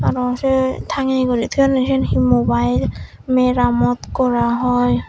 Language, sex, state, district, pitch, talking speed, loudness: Chakma, female, Tripura, Dhalai, 245 Hz, 130 wpm, -17 LUFS